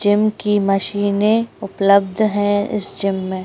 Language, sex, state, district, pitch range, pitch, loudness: Hindi, female, Uttar Pradesh, Etah, 195-210 Hz, 205 Hz, -17 LUFS